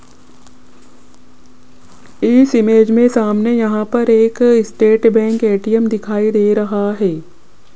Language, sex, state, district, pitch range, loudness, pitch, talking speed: Hindi, female, Rajasthan, Jaipur, 210-230 Hz, -13 LUFS, 220 Hz, 110 wpm